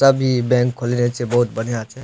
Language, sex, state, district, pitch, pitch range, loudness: Maithili, male, Bihar, Supaul, 120 Hz, 120-130 Hz, -19 LUFS